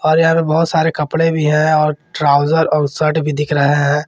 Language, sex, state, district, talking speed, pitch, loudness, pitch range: Hindi, male, Jharkhand, Ranchi, 235 wpm, 155 Hz, -14 LUFS, 150-160 Hz